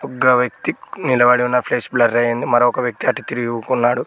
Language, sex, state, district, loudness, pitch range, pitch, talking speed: Telugu, male, Telangana, Mahabubabad, -17 LUFS, 120-125 Hz, 120 Hz, 175 wpm